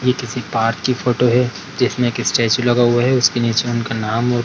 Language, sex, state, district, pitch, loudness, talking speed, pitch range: Hindi, male, Bihar, Darbhanga, 120 Hz, -17 LUFS, 245 wpm, 115-125 Hz